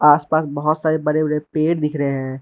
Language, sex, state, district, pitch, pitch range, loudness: Hindi, male, Arunachal Pradesh, Lower Dibang Valley, 150 Hz, 145-155 Hz, -19 LUFS